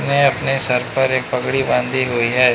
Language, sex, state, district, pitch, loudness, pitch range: Hindi, male, Manipur, Imphal West, 130 Hz, -17 LUFS, 125-135 Hz